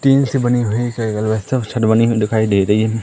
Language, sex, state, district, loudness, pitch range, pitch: Hindi, male, Madhya Pradesh, Katni, -16 LUFS, 110-120 Hz, 110 Hz